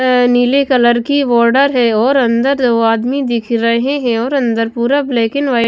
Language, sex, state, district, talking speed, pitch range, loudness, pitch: Hindi, female, Himachal Pradesh, Shimla, 200 wpm, 235-275 Hz, -13 LUFS, 245 Hz